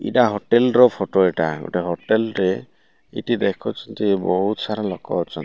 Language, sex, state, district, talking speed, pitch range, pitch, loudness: Odia, male, Odisha, Malkangiri, 155 wpm, 95-115 Hz, 105 Hz, -20 LUFS